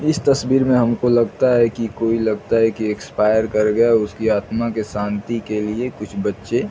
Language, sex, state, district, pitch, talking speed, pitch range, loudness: Hindi, male, Chhattisgarh, Raigarh, 115 Hz, 205 wpm, 105-120 Hz, -18 LUFS